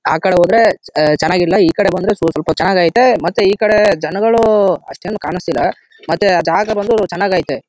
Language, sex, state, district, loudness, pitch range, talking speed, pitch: Kannada, male, Karnataka, Chamarajanagar, -13 LUFS, 165-210 Hz, 165 wpm, 185 Hz